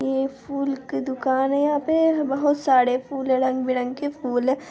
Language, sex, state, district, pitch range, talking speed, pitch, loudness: Hindi, female, Bihar, Araria, 260-285 Hz, 190 wpm, 270 Hz, -22 LUFS